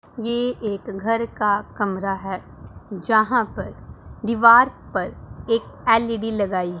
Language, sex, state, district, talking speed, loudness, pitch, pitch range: Hindi, female, Punjab, Pathankot, 115 wpm, -21 LUFS, 220 Hz, 200-230 Hz